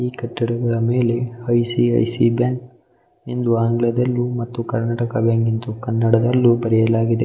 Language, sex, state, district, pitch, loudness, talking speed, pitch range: Kannada, male, Karnataka, Mysore, 115 Hz, -19 LUFS, 165 wpm, 115-120 Hz